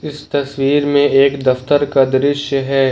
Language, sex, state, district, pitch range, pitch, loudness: Hindi, male, Jharkhand, Ranchi, 135-145 Hz, 140 Hz, -15 LUFS